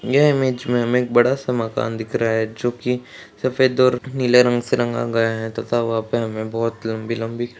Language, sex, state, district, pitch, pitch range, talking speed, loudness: Hindi, male, Uttarakhand, Uttarkashi, 120 Hz, 115-125 Hz, 220 wpm, -20 LUFS